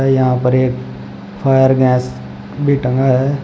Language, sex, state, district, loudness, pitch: Hindi, male, Uttar Pradesh, Shamli, -14 LUFS, 130 Hz